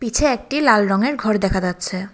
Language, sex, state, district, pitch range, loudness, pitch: Bengali, female, Tripura, West Tripura, 195-265 Hz, -18 LUFS, 215 Hz